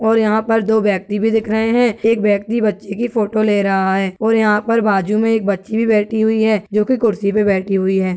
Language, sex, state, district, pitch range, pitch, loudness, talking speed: Hindi, male, Uttar Pradesh, Gorakhpur, 200-225 Hz, 215 Hz, -16 LUFS, 250 wpm